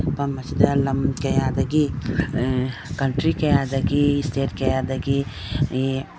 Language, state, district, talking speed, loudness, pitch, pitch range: Manipuri, Manipur, Imphal West, 105 wpm, -22 LUFS, 135 Hz, 130-140 Hz